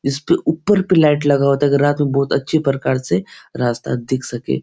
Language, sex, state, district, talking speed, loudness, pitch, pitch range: Hindi, male, Bihar, Supaul, 220 wpm, -17 LUFS, 140 Hz, 130-145 Hz